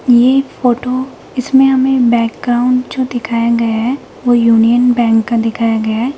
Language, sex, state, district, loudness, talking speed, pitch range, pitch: Hindi, female, Uttar Pradesh, Jalaun, -13 LUFS, 155 wpm, 230-255 Hz, 245 Hz